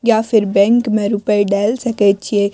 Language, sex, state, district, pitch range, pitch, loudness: Maithili, female, Bihar, Madhepura, 200-225 Hz, 210 Hz, -15 LUFS